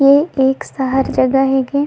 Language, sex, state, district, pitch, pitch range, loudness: Sadri, female, Chhattisgarh, Jashpur, 270 Hz, 265-280 Hz, -15 LUFS